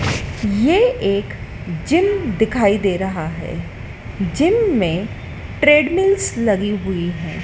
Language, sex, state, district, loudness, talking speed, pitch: Hindi, female, Madhya Pradesh, Dhar, -18 LUFS, 105 wpm, 220 Hz